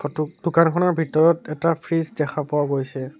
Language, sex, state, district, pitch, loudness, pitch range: Assamese, male, Assam, Sonitpur, 155 Hz, -21 LUFS, 150-165 Hz